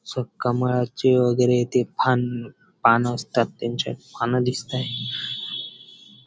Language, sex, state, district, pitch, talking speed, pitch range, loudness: Marathi, male, Maharashtra, Dhule, 125 Hz, 95 wpm, 120-125 Hz, -23 LUFS